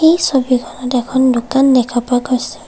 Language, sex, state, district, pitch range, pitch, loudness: Assamese, female, Assam, Kamrup Metropolitan, 245-265 Hz, 255 Hz, -14 LUFS